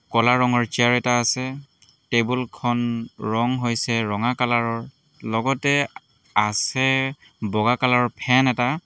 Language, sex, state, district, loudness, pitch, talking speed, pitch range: Assamese, male, Assam, Hailakandi, -21 LUFS, 120 Hz, 130 wpm, 115-130 Hz